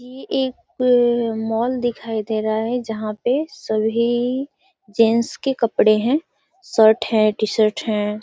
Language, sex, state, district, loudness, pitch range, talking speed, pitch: Hindi, female, Bihar, Gaya, -19 LUFS, 220-255 Hz, 130 wpm, 230 Hz